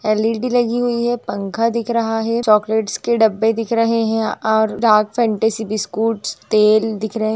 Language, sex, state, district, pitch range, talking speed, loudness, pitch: Hindi, female, Bihar, Purnia, 215-230 Hz, 180 wpm, -17 LUFS, 225 Hz